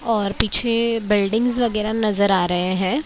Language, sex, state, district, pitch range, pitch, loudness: Hindi, female, Maharashtra, Mumbai Suburban, 200-230 Hz, 215 Hz, -20 LUFS